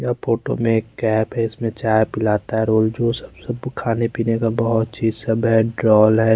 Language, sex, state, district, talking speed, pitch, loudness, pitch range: Hindi, male, Chandigarh, Chandigarh, 215 wpm, 115 Hz, -19 LUFS, 110-115 Hz